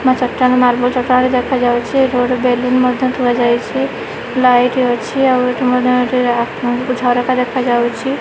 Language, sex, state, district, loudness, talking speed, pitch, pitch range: Odia, female, Odisha, Malkangiri, -14 LUFS, 140 wpm, 250 Hz, 245-255 Hz